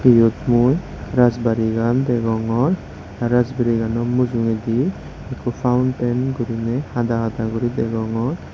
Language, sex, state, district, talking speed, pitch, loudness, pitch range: Chakma, male, Tripura, West Tripura, 90 wpm, 120 Hz, -20 LUFS, 115-125 Hz